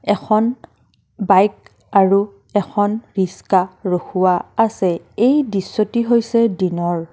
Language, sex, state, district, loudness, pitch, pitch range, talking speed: Assamese, female, Assam, Kamrup Metropolitan, -18 LUFS, 200 Hz, 185-225 Hz, 90 wpm